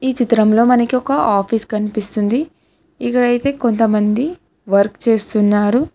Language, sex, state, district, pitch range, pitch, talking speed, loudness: Telugu, female, Telangana, Hyderabad, 210-250 Hz, 230 Hz, 100 wpm, -16 LUFS